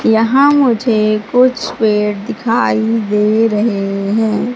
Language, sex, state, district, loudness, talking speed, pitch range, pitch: Hindi, female, Madhya Pradesh, Katni, -13 LUFS, 105 wpm, 210-235 Hz, 220 Hz